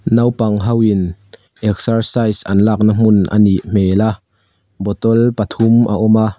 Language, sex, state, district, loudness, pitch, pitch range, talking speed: Mizo, male, Mizoram, Aizawl, -14 LUFS, 105 Hz, 100-115 Hz, 140 wpm